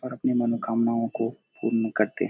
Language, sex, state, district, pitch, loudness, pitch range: Hindi, male, Uttar Pradesh, Etah, 115 Hz, -26 LUFS, 115-120 Hz